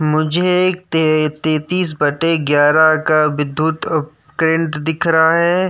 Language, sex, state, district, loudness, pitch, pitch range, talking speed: Hindi, male, Uttar Pradesh, Jyotiba Phule Nagar, -15 LUFS, 160 Hz, 155-165 Hz, 125 wpm